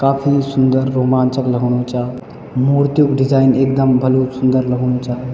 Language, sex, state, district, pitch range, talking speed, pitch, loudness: Garhwali, male, Uttarakhand, Tehri Garhwal, 125-135 Hz, 145 wpm, 130 Hz, -15 LUFS